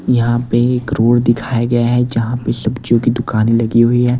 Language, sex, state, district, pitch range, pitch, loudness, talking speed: Hindi, male, Delhi, New Delhi, 115-120 Hz, 120 Hz, -15 LUFS, 215 wpm